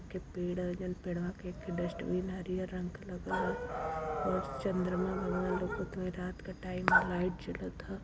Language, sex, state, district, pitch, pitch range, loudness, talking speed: Hindi, female, Uttar Pradesh, Varanasi, 180 Hz, 175-185 Hz, -36 LUFS, 180 wpm